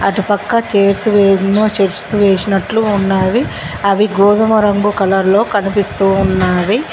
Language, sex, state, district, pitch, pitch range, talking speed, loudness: Telugu, female, Telangana, Mahabubabad, 200 Hz, 195-210 Hz, 110 wpm, -13 LUFS